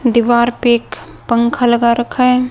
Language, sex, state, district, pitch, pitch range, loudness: Hindi, female, Haryana, Rohtak, 240 Hz, 235-245 Hz, -13 LUFS